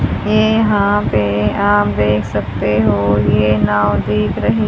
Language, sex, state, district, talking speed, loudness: Hindi, female, Haryana, Jhajjar, 140 wpm, -14 LUFS